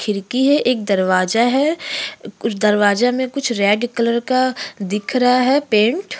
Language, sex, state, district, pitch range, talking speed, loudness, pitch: Hindi, female, Uttarakhand, Tehri Garhwal, 210-260 Hz, 165 wpm, -17 LUFS, 240 Hz